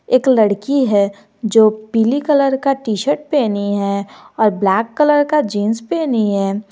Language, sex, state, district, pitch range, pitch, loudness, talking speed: Hindi, female, Jharkhand, Garhwa, 205-275 Hz, 225 Hz, -16 LUFS, 160 wpm